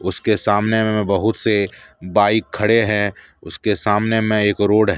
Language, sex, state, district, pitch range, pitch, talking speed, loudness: Hindi, male, Jharkhand, Deoghar, 105-110 Hz, 105 Hz, 180 wpm, -18 LUFS